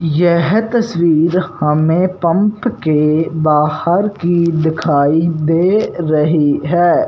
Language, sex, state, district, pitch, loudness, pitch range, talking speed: Hindi, male, Punjab, Fazilka, 165 Hz, -14 LUFS, 155-185 Hz, 95 wpm